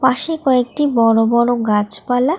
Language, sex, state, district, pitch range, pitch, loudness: Bengali, female, West Bengal, North 24 Parganas, 230-260 Hz, 245 Hz, -16 LUFS